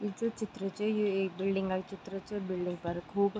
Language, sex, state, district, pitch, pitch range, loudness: Garhwali, female, Uttarakhand, Tehri Garhwal, 195 Hz, 190-210 Hz, -34 LUFS